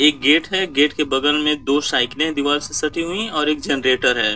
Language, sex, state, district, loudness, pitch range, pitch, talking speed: Hindi, male, Uttar Pradesh, Varanasi, -18 LUFS, 145-155 Hz, 150 Hz, 250 wpm